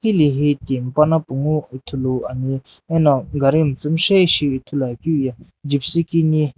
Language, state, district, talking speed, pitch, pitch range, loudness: Sumi, Nagaland, Dimapur, 145 wpm, 145 Hz, 135-160 Hz, -18 LUFS